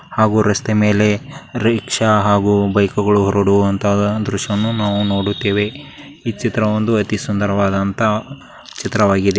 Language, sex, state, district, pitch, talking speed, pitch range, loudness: Kannada, male, Karnataka, Dakshina Kannada, 105 Hz, 100 wpm, 100-110 Hz, -16 LUFS